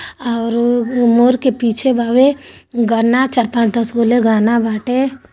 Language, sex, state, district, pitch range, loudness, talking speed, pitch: Hindi, female, Bihar, Gopalganj, 230-250 Hz, -14 LUFS, 100 wpm, 235 Hz